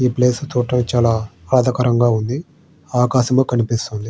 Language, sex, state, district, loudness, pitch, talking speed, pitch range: Telugu, male, Andhra Pradesh, Srikakulam, -18 LUFS, 125 Hz, 115 wpm, 120-130 Hz